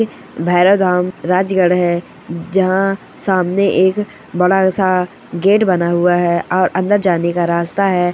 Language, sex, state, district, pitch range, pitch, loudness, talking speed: Hindi, male, Rajasthan, Churu, 175-190 Hz, 185 Hz, -15 LUFS, 140 wpm